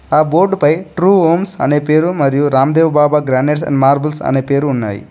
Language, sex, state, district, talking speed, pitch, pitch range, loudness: Telugu, male, Telangana, Mahabubabad, 190 wpm, 150 Hz, 140-160 Hz, -13 LUFS